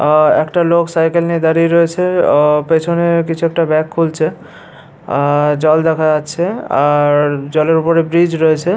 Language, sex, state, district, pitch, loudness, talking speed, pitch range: Bengali, male, West Bengal, Paschim Medinipur, 160 Hz, -13 LUFS, 150 wpm, 150-170 Hz